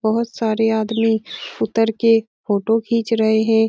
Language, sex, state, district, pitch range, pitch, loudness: Hindi, female, Bihar, Lakhisarai, 220-225 Hz, 225 Hz, -18 LUFS